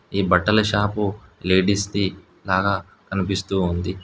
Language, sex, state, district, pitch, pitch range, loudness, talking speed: Telugu, male, Telangana, Hyderabad, 95 Hz, 95-100 Hz, -21 LUFS, 105 wpm